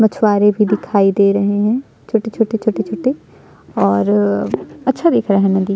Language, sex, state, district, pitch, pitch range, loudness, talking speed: Hindi, female, Chhattisgarh, Sukma, 210 Hz, 195-225 Hz, -16 LUFS, 165 wpm